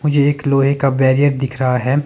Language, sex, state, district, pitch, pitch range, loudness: Hindi, male, Himachal Pradesh, Shimla, 135 Hz, 130-145 Hz, -15 LUFS